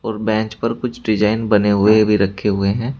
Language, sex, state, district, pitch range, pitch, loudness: Hindi, male, Uttar Pradesh, Shamli, 105-115 Hz, 110 Hz, -17 LUFS